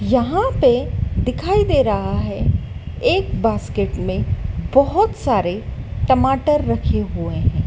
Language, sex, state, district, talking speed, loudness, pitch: Hindi, female, Madhya Pradesh, Dhar, 115 wpm, -19 LUFS, 270 Hz